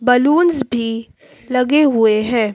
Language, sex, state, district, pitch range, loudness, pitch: Hindi, female, Madhya Pradesh, Bhopal, 225-280 Hz, -15 LUFS, 250 Hz